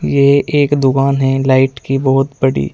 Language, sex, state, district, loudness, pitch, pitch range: Hindi, male, Uttar Pradesh, Saharanpur, -13 LUFS, 135 Hz, 130-140 Hz